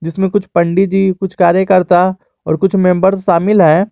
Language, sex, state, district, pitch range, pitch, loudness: Hindi, male, Jharkhand, Garhwa, 175-195 Hz, 190 Hz, -12 LUFS